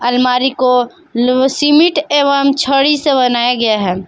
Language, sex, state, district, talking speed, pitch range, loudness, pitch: Hindi, female, Jharkhand, Palamu, 145 wpm, 245-285 Hz, -12 LUFS, 260 Hz